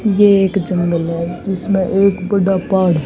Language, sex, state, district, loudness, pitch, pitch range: Hindi, female, Haryana, Jhajjar, -15 LUFS, 190 Hz, 175-195 Hz